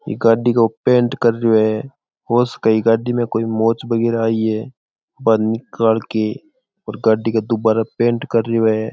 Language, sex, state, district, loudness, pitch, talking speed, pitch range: Rajasthani, male, Rajasthan, Churu, -17 LUFS, 115 Hz, 175 wpm, 110-120 Hz